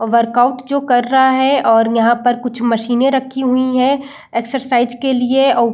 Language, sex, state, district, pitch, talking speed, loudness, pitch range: Hindi, female, Bihar, Saran, 250 Hz, 190 wpm, -14 LUFS, 240-265 Hz